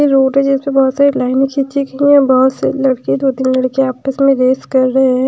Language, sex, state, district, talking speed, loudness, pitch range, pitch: Hindi, female, Bihar, West Champaran, 225 wpm, -13 LUFS, 260-275 Hz, 270 Hz